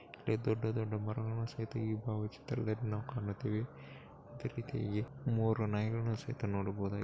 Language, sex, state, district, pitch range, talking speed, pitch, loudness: Kannada, male, Karnataka, Bellary, 105-115 Hz, 85 wpm, 110 Hz, -38 LUFS